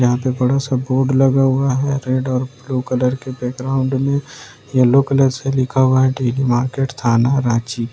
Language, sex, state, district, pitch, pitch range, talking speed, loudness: Hindi, male, Jharkhand, Ranchi, 130 Hz, 125-135 Hz, 180 wpm, -17 LUFS